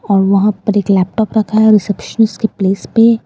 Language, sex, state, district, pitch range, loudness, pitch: Hindi, female, Bihar, Katihar, 195-220 Hz, -13 LUFS, 210 Hz